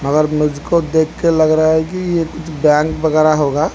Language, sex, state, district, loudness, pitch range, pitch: Hindi, male, Odisha, Khordha, -15 LUFS, 150-160 Hz, 155 Hz